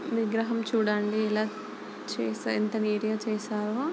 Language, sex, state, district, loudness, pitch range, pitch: Telugu, female, Andhra Pradesh, Chittoor, -29 LUFS, 210-225 Hz, 215 Hz